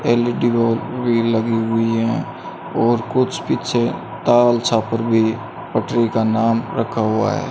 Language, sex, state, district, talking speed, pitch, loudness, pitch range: Hindi, male, Rajasthan, Bikaner, 145 wpm, 115 Hz, -18 LUFS, 115-120 Hz